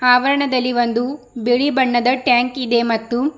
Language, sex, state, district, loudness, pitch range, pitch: Kannada, female, Karnataka, Bidar, -17 LUFS, 240-260 Hz, 250 Hz